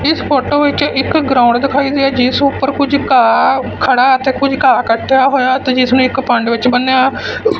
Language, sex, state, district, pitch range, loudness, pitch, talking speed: Punjabi, male, Punjab, Fazilka, 255-280 Hz, -12 LUFS, 265 Hz, 190 wpm